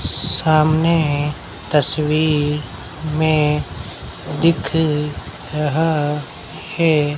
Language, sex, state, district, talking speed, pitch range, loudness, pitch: Hindi, male, Rajasthan, Bikaner, 50 wpm, 145-155 Hz, -18 LUFS, 150 Hz